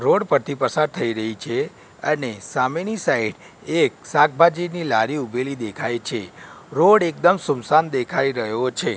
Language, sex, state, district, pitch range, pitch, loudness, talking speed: Gujarati, male, Gujarat, Gandhinagar, 125-165 Hz, 140 Hz, -21 LUFS, 140 wpm